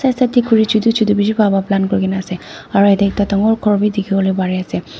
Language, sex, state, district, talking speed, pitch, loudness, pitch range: Nagamese, female, Nagaland, Dimapur, 190 wpm, 205 Hz, -15 LUFS, 195-220 Hz